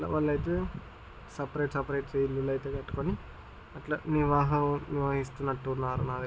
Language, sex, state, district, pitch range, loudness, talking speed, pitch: Telugu, male, Andhra Pradesh, Chittoor, 135-145 Hz, -31 LUFS, 85 wpm, 140 Hz